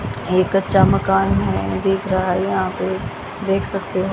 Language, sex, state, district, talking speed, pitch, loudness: Hindi, female, Haryana, Jhajjar, 175 wpm, 185 Hz, -19 LUFS